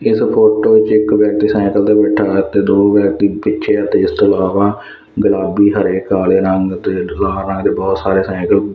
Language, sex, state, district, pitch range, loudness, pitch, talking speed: Punjabi, male, Punjab, Fazilka, 95-105 Hz, -13 LUFS, 100 Hz, 170 wpm